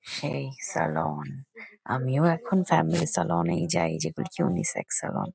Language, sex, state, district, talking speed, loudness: Bengali, female, West Bengal, Kolkata, 135 wpm, -27 LUFS